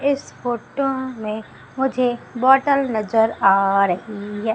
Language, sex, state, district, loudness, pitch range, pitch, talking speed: Hindi, female, Madhya Pradesh, Umaria, -20 LUFS, 215-265 Hz, 235 Hz, 120 wpm